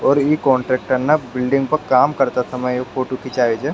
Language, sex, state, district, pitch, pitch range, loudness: Rajasthani, male, Rajasthan, Nagaur, 130 Hz, 125-140 Hz, -18 LUFS